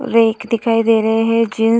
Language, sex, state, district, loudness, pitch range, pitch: Hindi, female, Uttar Pradesh, Hamirpur, -15 LUFS, 225-230 Hz, 225 Hz